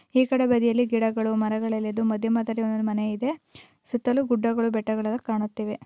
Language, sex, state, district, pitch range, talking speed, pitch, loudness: Kannada, female, Karnataka, Bijapur, 220-240 Hz, 145 wpm, 225 Hz, -25 LUFS